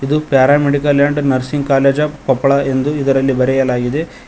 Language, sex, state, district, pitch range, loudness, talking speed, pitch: Kannada, male, Karnataka, Koppal, 135-145 Hz, -14 LUFS, 140 wpm, 140 Hz